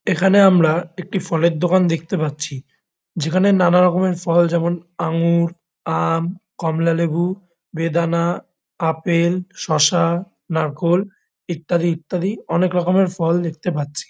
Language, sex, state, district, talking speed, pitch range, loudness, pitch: Bengali, male, West Bengal, Malda, 110 wpm, 165-180 Hz, -19 LUFS, 170 Hz